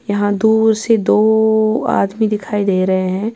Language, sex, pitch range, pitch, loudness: Urdu, female, 205-220 Hz, 215 Hz, -15 LUFS